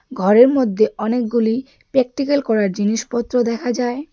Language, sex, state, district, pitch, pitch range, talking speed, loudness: Bengali, female, West Bengal, Darjeeling, 240 Hz, 220-260 Hz, 115 wpm, -18 LUFS